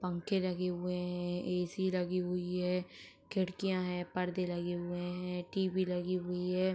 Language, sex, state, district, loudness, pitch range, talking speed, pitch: Hindi, female, Uttar Pradesh, Etah, -36 LUFS, 180-185 Hz, 160 wpm, 180 Hz